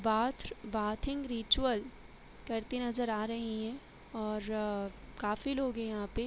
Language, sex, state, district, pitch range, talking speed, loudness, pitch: Hindi, female, Uttar Pradesh, Hamirpur, 215-245 Hz, 145 wpm, -36 LUFS, 225 Hz